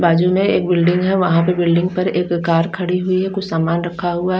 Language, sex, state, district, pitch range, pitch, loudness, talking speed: Hindi, female, Odisha, Nuapada, 170-185 Hz, 175 Hz, -17 LUFS, 245 wpm